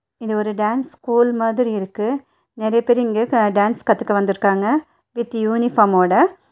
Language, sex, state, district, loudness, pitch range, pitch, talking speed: Tamil, female, Tamil Nadu, Nilgiris, -18 LUFS, 210-245 Hz, 230 Hz, 145 wpm